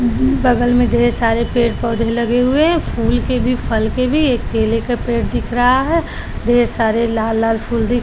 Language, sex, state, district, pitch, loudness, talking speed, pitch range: Hindi, female, Maharashtra, Chandrapur, 240 Hz, -16 LUFS, 225 wpm, 230-250 Hz